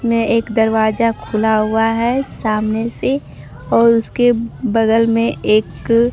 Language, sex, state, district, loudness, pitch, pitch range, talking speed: Hindi, female, Bihar, Kaimur, -16 LUFS, 225 Hz, 215-230 Hz, 125 wpm